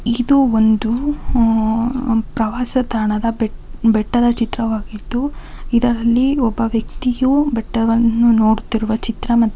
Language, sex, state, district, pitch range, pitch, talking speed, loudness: Kannada, female, Karnataka, Mysore, 225-245 Hz, 230 Hz, 90 wpm, -17 LUFS